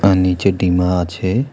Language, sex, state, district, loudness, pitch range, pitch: Bengali, male, West Bengal, Alipurduar, -16 LUFS, 90-100 Hz, 95 Hz